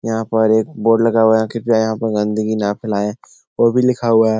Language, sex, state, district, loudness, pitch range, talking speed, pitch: Hindi, male, Bihar, Jahanabad, -16 LUFS, 110-115 Hz, 245 wpm, 110 Hz